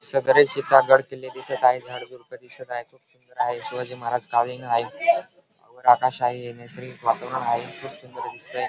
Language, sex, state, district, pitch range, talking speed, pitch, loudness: Marathi, male, Maharashtra, Dhule, 120-145 Hz, 160 wpm, 125 Hz, -21 LUFS